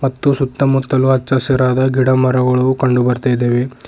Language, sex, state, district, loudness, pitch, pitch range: Kannada, male, Karnataka, Bidar, -14 LUFS, 130 Hz, 125-135 Hz